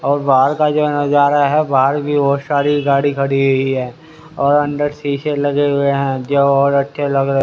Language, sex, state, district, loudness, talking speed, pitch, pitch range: Hindi, male, Haryana, Rohtak, -15 LUFS, 200 wpm, 140 Hz, 140-145 Hz